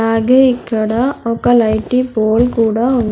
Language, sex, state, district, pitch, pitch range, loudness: Telugu, male, Andhra Pradesh, Sri Satya Sai, 230 Hz, 220-250 Hz, -14 LUFS